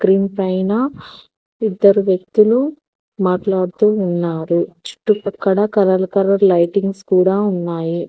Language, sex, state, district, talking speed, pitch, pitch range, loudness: Telugu, female, Telangana, Hyderabad, 80 wpm, 195 Hz, 180-205 Hz, -16 LUFS